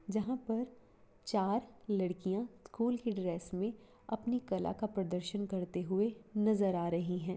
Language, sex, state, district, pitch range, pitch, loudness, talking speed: Hindi, female, Bihar, Darbhanga, 185-225 Hz, 205 Hz, -36 LUFS, 145 wpm